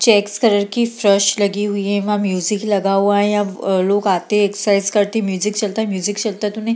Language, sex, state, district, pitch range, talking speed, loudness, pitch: Hindi, female, Bihar, Gaya, 200-210 Hz, 255 wpm, -17 LUFS, 205 Hz